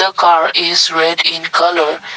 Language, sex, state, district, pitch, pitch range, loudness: English, male, Assam, Kamrup Metropolitan, 165 Hz, 160-170 Hz, -12 LUFS